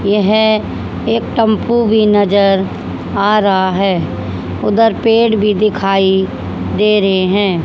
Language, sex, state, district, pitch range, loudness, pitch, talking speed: Hindi, female, Haryana, Charkhi Dadri, 190-215 Hz, -13 LUFS, 205 Hz, 120 wpm